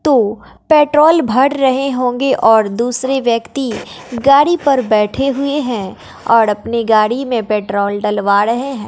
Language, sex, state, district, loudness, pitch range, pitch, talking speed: Hindi, female, Bihar, West Champaran, -14 LUFS, 220-275 Hz, 245 Hz, 140 wpm